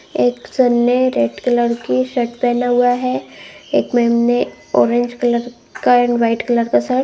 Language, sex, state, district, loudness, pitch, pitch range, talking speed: Hindi, female, Bihar, Lakhisarai, -16 LUFS, 240 Hz, 235-245 Hz, 185 wpm